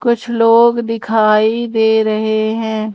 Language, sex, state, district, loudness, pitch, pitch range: Hindi, female, Madhya Pradesh, Umaria, -13 LUFS, 220 Hz, 220-235 Hz